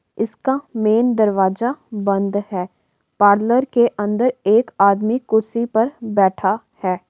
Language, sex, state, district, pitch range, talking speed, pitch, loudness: Hindi, female, Uttar Pradesh, Varanasi, 200-235 Hz, 120 wpm, 220 Hz, -18 LUFS